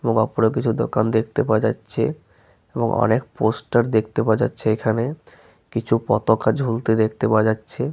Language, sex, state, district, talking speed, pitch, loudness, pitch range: Bengali, male, West Bengal, Malda, 165 wpm, 110 Hz, -21 LUFS, 110-120 Hz